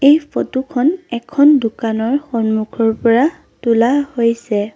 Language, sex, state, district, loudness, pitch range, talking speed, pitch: Assamese, female, Assam, Sonitpur, -16 LUFS, 225-285 Hz, 115 wpm, 235 Hz